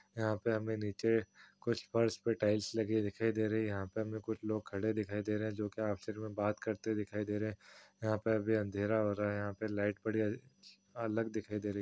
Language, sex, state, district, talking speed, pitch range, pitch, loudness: Hindi, male, Uttar Pradesh, Muzaffarnagar, 260 wpm, 105-110 Hz, 110 Hz, -37 LUFS